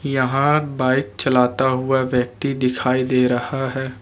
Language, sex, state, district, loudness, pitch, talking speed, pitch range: Hindi, male, Jharkhand, Ranchi, -19 LUFS, 130 Hz, 135 wpm, 125-135 Hz